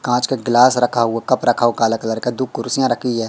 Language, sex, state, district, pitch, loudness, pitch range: Hindi, male, Madhya Pradesh, Katni, 120 Hz, -17 LUFS, 115-125 Hz